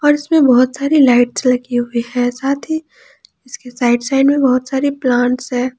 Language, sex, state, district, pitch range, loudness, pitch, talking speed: Hindi, female, Jharkhand, Ranchi, 245-280 Hz, -14 LUFS, 255 Hz, 185 wpm